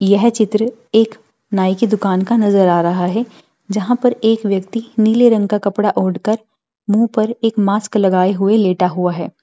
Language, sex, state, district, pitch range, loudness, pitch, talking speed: Hindi, female, Bihar, Darbhanga, 195-225 Hz, -15 LUFS, 210 Hz, 185 wpm